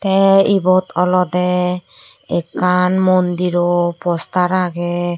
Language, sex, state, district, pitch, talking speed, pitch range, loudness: Chakma, female, Tripura, Dhalai, 180 Hz, 80 wpm, 175-185 Hz, -16 LUFS